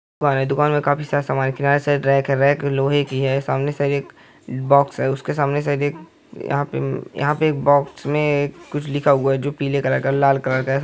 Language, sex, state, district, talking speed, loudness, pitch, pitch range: Hindi, male, Uttar Pradesh, Hamirpur, 220 wpm, -19 LUFS, 140 Hz, 135-145 Hz